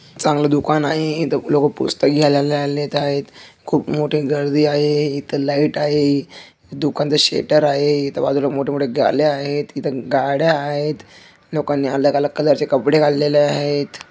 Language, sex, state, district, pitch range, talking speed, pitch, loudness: Marathi, male, Maharashtra, Dhule, 140-150 Hz, 155 wpm, 145 Hz, -18 LUFS